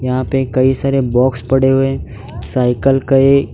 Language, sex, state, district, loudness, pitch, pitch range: Hindi, male, Gujarat, Valsad, -14 LUFS, 135 Hz, 130-135 Hz